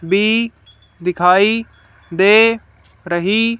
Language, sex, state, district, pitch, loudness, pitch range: Hindi, female, Haryana, Charkhi Dadri, 200 Hz, -14 LUFS, 180-225 Hz